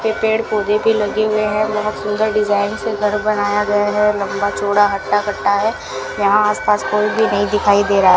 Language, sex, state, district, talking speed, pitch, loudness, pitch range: Hindi, female, Rajasthan, Bikaner, 220 wpm, 210 Hz, -16 LUFS, 205-215 Hz